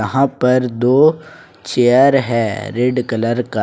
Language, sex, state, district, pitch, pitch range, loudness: Hindi, male, Jharkhand, Ranchi, 125 Hz, 115-135 Hz, -15 LUFS